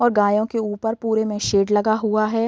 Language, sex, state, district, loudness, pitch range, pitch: Hindi, female, Bihar, Sitamarhi, -20 LUFS, 210-225 Hz, 215 Hz